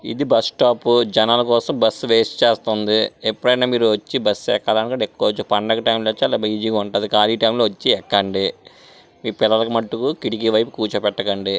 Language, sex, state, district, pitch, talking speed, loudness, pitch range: Telugu, male, Andhra Pradesh, Srikakulam, 110 Hz, 170 wpm, -18 LUFS, 105-115 Hz